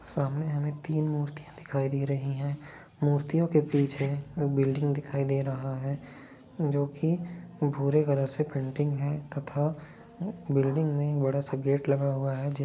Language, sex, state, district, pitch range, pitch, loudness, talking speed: Hindi, male, Bihar, Lakhisarai, 140-150 Hz, 145 Hz, -29 LUFS, 165 wpm